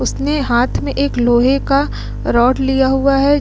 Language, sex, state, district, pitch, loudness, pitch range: Hindi, female, Uttar Pradesh, Muzaffarnagar, 270 Hz, -15 LUFS, 250-280 Hz